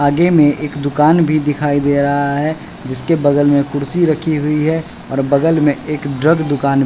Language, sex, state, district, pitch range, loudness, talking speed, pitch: Hindi, male, Bihar, West Champaran, 140-155 Hz, -15 LUFS, 190 wpm, 145 Hz